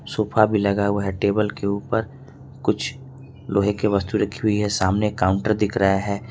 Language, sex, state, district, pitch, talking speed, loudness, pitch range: Hindi, male, Jharkhand, Ranchi, 105 Hz, 190 wpm, -22 LUFS, 100-110 Hz